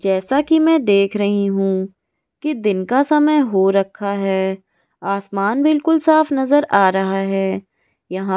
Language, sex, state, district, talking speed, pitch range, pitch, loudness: Hindi, female, Goa, North and South Goa, 160 wpm, 195-290 Hz, 200 Hz, -17 LUFS